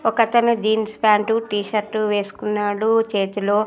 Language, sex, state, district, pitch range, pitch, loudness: Telugu, female, Andhra Pradesh, Sri Satya Sai, 205-225 Hz, 215 Hz, -20 LUFS